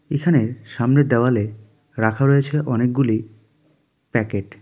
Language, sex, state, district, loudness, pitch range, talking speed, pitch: Bengali, male, West Bengal, Darjeeling, -20 LUFS, 110-145 Hz, 105 wpm, 125 Hz